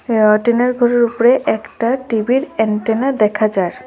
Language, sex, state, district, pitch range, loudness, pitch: Bengali, female, Assam, Hailakandi, 215-245 Hz, -15 LUFS, 230 Hz